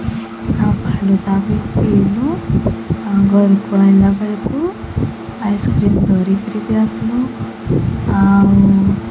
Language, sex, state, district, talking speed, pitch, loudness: Odia, female, Odisha, Sambalpur, 60 wpm, 195 Hz, -15 LUFS